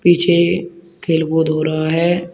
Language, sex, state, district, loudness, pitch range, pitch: Hindi, male, Uttar Pradesh, Shamli, -16 LUFS, 160-175 Hz, 170 Hz